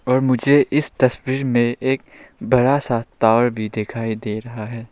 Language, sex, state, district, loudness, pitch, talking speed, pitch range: Hindi, male, Arunachal Pradesh, Lower Dibang Valley, -19 LUFS, 125 Hz, 170 wpm, 115-135 Hz